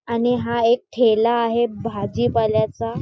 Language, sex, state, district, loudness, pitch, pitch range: Marathi, female, Maharashtra, Chandrapur, -20 LUFS, 235 Hz, 230-235 Hz